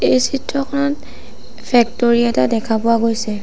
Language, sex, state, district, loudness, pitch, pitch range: Assamese, female, Assam, Sonitpur, -17 LUFS, 235 Hz, 225-275 Hz